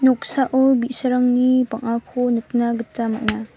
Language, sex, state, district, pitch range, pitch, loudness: Garo, female, Meghalaya, West Garo Hills, 230-255 Hz, 245 Hz, -19 LUFS